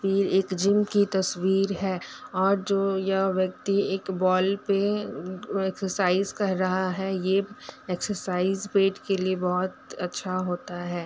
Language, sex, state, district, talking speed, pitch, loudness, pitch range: Hindi, female, Bihar, Muzaffarpur, 140 wpm, 190 Hz, -26 LUFS, 185-195 Hz